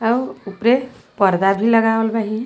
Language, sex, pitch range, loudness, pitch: Sadri, female, 200-230 Hz, -17 LUFS, 225 Hz